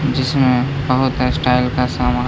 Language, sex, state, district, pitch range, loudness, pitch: Hindi, male, Bihar, Gaya, 125-130 Hz, -16 LUFS, 125 Hz